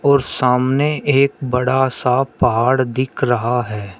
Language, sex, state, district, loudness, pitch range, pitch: Hindi, male, Uttar Pradesh, Shamli, -17 LUFS, 125-135 Hz, 130 Hz